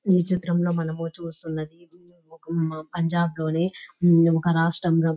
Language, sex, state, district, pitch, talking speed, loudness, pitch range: Telugu, female, Telangana, Nalgonda, 165 Hz, 115 wpm, -24 LUFS, 165-175 Hz